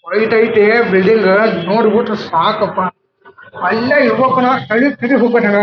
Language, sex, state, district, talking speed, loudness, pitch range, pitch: Kannada, male, Karnataka, Dharwad, 85 wpm, -12 LUFS, 205-240 Hz, 220 Hz